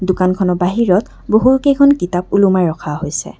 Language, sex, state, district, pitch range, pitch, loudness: Assamese, female, Assam, Kamrup Metropolitan, 180-215 Hz, 185 Hz, -14 LUFS